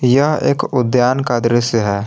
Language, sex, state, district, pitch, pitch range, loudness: Hindi, male, Jharkhand, Palamu, 125 Hz, 115-130 Hz, -15 LUFS